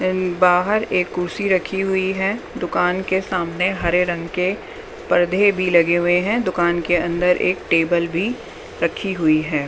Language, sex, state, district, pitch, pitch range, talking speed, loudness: Hindi, female, Bihar, West Champaran, 180 Hz, 175-190 Hz, 160 wpm, -19 LUFS